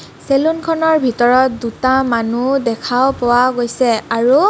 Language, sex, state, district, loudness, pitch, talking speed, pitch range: Assamese, female, Assam, Kamrup Metropolitan, -15 LUFS, 255 Hz, 105 wpm, 240-275 Hz